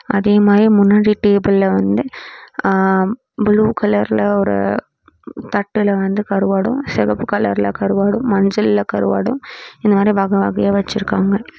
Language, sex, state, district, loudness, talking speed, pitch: Tamil, female, Tamil Nadu, Namakkal, -15 LUFS, 110 wpm, 200 Hz